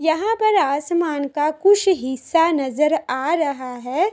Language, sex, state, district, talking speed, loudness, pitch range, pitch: Hindi, female, Bihar, Darbhanga, 145 wpm, -19 LUFS, 280-345 Hz, 315 Hz